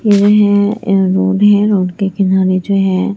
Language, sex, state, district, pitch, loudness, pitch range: Hindi, female, Bihar, Katihar, 195 Hz, -12 LUFS, 190-205 Hz